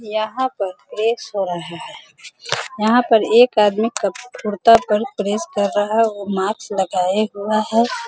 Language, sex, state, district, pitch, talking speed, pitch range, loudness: Hindi, female, Bihar, Sitamarhi, 215 Hz, 170 wpm, 200-230 Hz, -18 LUFS